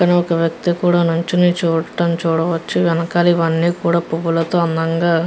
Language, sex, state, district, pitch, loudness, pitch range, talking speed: Telugu, female, Andhra Pradesh, Guntur, 170 Hz, -17 LUFS, 165-175 Hz, 135 wpm